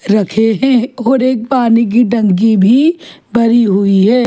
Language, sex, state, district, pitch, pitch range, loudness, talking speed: Hindi, female, Chhattisgarh, Kabirdham, 230 Hz, 215-250 Hz, -11 LUFS, 155 wpm